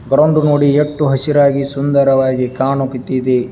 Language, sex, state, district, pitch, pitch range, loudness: Kannada, male, Karnataka, Dharwad, 140 Hz, 130-145 Hz, -14 LUFS